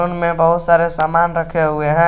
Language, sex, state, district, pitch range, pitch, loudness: Hindi, male, Jharkhand, Garhwa, 160-170 Hz, 170 Hz, -15 LUFS